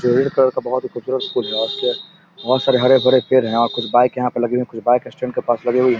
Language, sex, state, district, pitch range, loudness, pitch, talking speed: Hindi, male, Bihar, Samastipur, 120-130 Hz, -18 LUFS, 125 Hz, 250 wpm